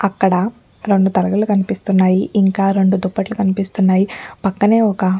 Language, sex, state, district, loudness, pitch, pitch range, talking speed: Telugu, female, Andhra Pradesh, Anantapur, -16 LUFS, 195 Hz, 190-200 Hz, 115 wpm